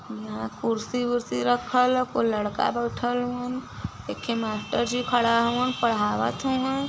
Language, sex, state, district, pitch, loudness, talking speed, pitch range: Bhojpuri, female, Uttar Pradesh, Varanasi, 240 Hz, -26 LUFS, 140 wpm, 215-250 Hz